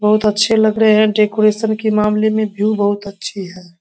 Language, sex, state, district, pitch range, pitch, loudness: Hindi, male, Bihar, Samastipur, 205-215 Hz, 215 Hz, -15 LUFS